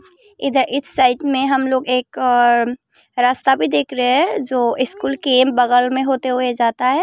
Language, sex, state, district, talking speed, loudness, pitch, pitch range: Hindi, female, Tripura, Unakoti, 180 wpm, -17 LUFS, 255 Hz, 245-265 Hz